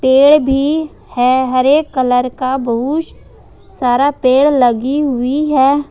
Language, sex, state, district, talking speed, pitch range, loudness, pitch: Hindi, female, Jharkhand, Ranchi, 120 wpm, 255-290 Hz, -13 LUFS, 265 Hz